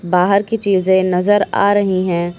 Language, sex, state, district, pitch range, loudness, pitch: Hindi, female, Uttar Pradesh, Lucknow, 180-200 Hz, -15 LUFS, 190 Hz